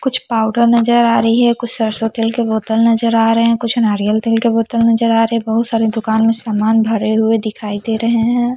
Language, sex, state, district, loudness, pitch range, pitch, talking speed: Hindi, female, Chhattisgarh, Jashpur, -14 LUFS, 220-230 Hz, 225 Hz, 245 wpm